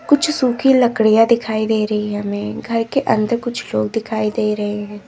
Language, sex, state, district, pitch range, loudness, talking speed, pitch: Hindi, female, Uttar Pradesh, Lalitpur, 210-240 Hz, -17 LUFS, 200 wpm, 220 Hz